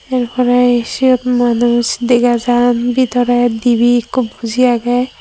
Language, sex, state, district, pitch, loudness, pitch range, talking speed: Chakma, female, Tripura, Dhalai, 245 Hz, -13 LUFS, 240-250 Hz, 125 wpm